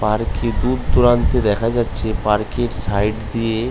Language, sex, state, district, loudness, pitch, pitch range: Bengali, male, West Bengal, North 24 Parganas, -18 LUFS, 110 Hz, 105-120 Hz